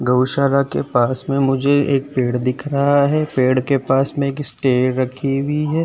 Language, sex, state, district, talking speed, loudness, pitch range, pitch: Hindi, male, Uttar Pradesh, Jyotiba Phule Nagar, 195 wpm, -18 LUFS, 130-140 Hz, 135 Hz